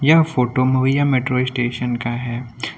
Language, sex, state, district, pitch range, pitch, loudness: Hindi, male, Uttar Pradesh, Lucknow, 120-130 Hz, 125 Hz, -19 LUFS